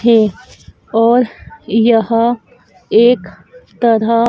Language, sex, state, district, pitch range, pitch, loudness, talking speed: Hindi, female, Madhya Pradesh, Dhar, 225-240 Hz, 230 Hz, -13 LUFS, 70 wpm